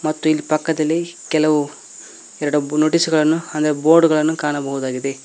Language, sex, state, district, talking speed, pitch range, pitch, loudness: Kannada, male, Karnataka, Koppal, 115 wpm, 150-160 Hz, 155 Hz, -18 LUFS